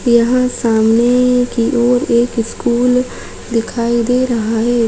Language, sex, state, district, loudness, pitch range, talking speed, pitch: Chhattisgarhi, female, Chhattisgarh, Sarguja, -14 LUFS, 230-245 Hz, 125 wpm, 240 Hz